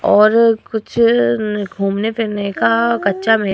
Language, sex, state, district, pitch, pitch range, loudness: Hindi, female, Uttar Pradesh, Hamirpur, 215 Hz, 200-225 Hz, -15 LUFS